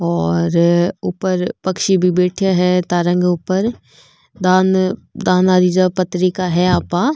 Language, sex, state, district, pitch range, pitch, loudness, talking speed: Marwari, female, Rajasthan, Nagaur, 180-185 Hz, 180 Hz, -16 LUFS, 145 wpm